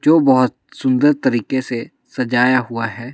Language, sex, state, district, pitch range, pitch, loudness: Hindi, male, Himachal Pradesh, Shimla, 120-135 Hz, 130 Hz, -17 LUFS